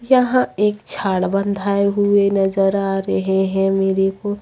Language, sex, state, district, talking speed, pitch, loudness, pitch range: Hindi, female, Chhattisgarh, Raipur, 150 wpm, 195 Hz, -18 LUFS, 195-205 Hz